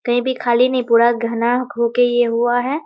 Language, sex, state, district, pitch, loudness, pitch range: Hindi, female, Bihar, Muzaffarpur, 240 Hz, -16 LUFS, 235-250 Hz